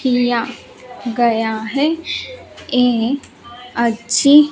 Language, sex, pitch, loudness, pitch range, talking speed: Hindi, female, 245 Hz, -17 LUFS, 235-275 Hz, 65 wpm